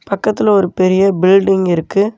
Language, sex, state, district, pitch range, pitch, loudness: Tamil, male, Tamil Nadu, Namakkal, 185-200 Hz, 195 Hz, -13 LUFS